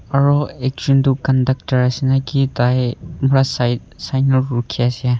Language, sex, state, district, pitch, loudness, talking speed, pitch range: Nagamese, male, Nagaland, Kohima, 130 Hz, -17 LUFS, 150 wpm, 125-135 Hz